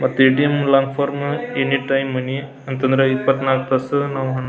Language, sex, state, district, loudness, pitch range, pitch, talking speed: Kannada, male, Karnataka, Belgaum, -18 LUFS, 130-140 Hz, 135 Hz, 145 wpm